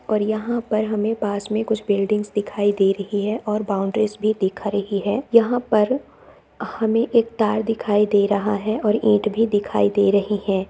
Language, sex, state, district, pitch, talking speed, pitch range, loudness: Hindi, female, Uttar Pradesh, Etah, 210 Hz, 190 wpm, 205-220 Hz, -20 LUFS